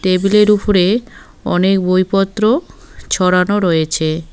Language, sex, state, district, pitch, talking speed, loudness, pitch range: Bengali, female, West Bengal, Cooch Behar, 190 Hz, 110 wpm, -14 LUFS, 180-210 Hz